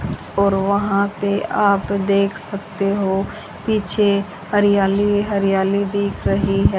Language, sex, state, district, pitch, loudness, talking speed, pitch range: Hindi, female, Haryana, Charkhi Dadri, 200 Hz, -19 LUFS, 115 wpm, 195-205 Hz